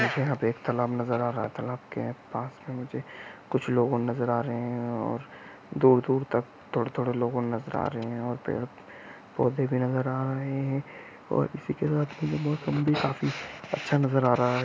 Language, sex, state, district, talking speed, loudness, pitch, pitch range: Hindi, male, Jharkhand, Sahebganj, 205 wpm, -29 LUFS, 125 Hz, 120-135 Hz